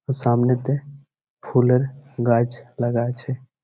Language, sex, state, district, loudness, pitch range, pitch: Bengali, male, West Bengal, Malda, -22 LUFS, 120-140 Hz, 125 Hz